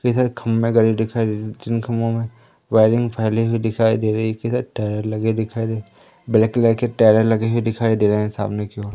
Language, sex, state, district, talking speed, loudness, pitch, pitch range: Hindi, female, Madhya Pradesh, Umaria, 210 wpm, -19 LUFS, 110 Hz, 110-115 Hz